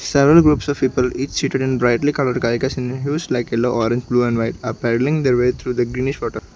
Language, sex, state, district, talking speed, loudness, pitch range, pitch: English, male, Arunachal Pradesh, Lower Dibang Valley, 230 wpm, -18 LUFS, 120-135 Hz, 125 Hz